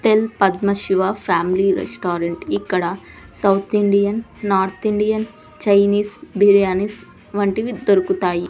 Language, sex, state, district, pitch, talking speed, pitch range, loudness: Telugu, female, Andhra Pradesh, Sri Satya Sai, 200 Hz, 100 wpm, 190-210 Hz, -18 LUFS